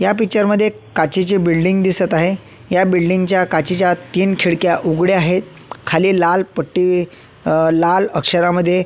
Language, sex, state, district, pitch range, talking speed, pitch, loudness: Marathi, male, Maharashtra, Solapur, 170-190 Hz, 150 wpm, 180 Hz, -16 LUFS